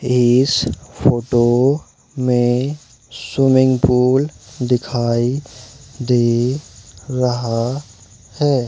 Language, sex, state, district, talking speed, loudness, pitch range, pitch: Hindi, male, Madhya Pradesh, Umaria, 60 wpm, -17 LUFS, 120-130 Hz, 125 Hz